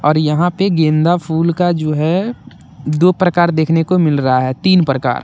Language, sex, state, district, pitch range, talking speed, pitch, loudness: Hindi, male, Jharkhand, Deoghar, 150-175 Hz, 195 wpm, 165 Hz, -14 LUFS